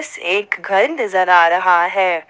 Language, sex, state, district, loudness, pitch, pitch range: Hindi, female, Jharkhand, Ranchi, -15 LUFS, 185 Hz, 175-195 Hz